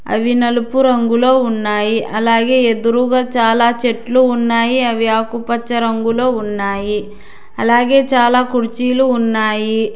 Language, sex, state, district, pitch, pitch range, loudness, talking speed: Telugu, female, Telangana, Hyderabad, 235 Hz, 225-250 Hz, -14 LUFS, 100 wpm